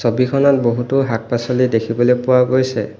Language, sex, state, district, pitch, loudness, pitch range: Assamese, male, Assam, Hailakandi, 125 Hz, -16 LUFS, 115-130 Hz